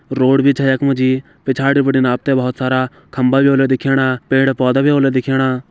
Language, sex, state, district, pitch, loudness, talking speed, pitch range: Garhwali, male, Uttarakhand, Tehri Garhwal, 135 Hz, -15 LUFS, 200 wpm, 130-135 Hz